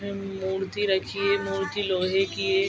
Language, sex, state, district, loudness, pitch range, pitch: Hindi, female, Bihar, Araria, -26 LUFS, 190-200 Hz, 195 Hz